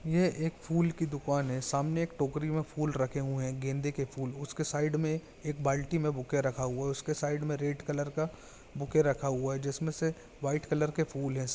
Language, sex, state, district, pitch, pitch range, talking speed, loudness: Hindi, male, Chhattisgarh, Bilaspur, 145 Hz, 135-155 Hz, 230 wpm, -33 LUFS